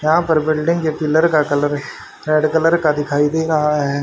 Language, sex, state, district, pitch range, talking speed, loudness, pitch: Hindi, male, Haryana, Rohtak, 150-160 Hz, 210 wpm, -16 LUFS, 155 Hz